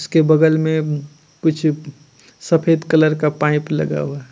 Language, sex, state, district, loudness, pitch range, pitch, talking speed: Hindi, male, Jharkhand, Ranchi, -17 LUFS, 145-160 Hz, 150 Hz, 140 wpm